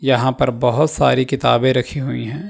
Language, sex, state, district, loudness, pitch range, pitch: Hindi, male, Chandigarh, Chandigarh, -17 LUFS, 130-145 Hz, 130 Hz